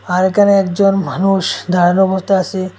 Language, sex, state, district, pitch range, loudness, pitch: Bengali, male, Assam, Hailakandi, 185-195 Hz, -14 LUFS, 190 Hz